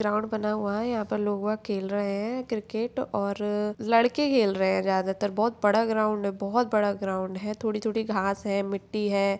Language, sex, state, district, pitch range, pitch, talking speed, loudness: Hindi, female, Bihar, Samastipur, 200-220 Hz, 210 Hz, 190 wpm, -27 LUFS